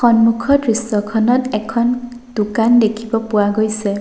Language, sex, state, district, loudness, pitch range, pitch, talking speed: Assamese, female, Assam, Sonitpur, -16 LUFS, 215-240 Hz, 225 Hz, 105 wpm